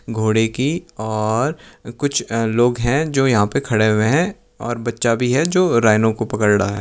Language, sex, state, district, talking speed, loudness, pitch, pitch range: Hindi, male, Uttar Pradesh, Lucknow, 195 wpm, -18 LUFS, 115 Hz, 110-135 Hz